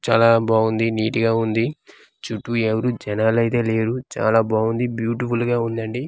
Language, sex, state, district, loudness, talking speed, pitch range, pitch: Telugu, male, Andhra Pradesh, Manyam, -20 LUFS, 150 wpm, 110-120 Hz, 115 Hz